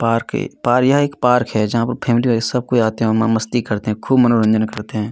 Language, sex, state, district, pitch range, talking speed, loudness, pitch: Hindi, male, Chhattisgarh, Kabirdham, 110-125 Hz, 280 wpm, -17 LUFS, 115 Hz